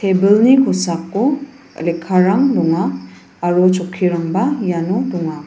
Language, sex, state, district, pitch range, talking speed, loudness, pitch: Garo, female, Meghalaya, West Garo Hills, 170-205 Hz, 90 wpm, -16 LUFS, 180 Hz